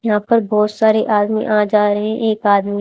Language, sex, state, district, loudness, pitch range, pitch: Hindi, female, Haryana, Rohtak, -15 LUFS, 210-220 Hz, 210 Hz